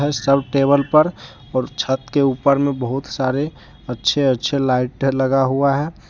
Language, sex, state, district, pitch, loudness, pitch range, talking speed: Hindi, male, Jharkhand, Deoghar, 135 Hz, -18 LUFS, 130-140 Hz, 155 wpm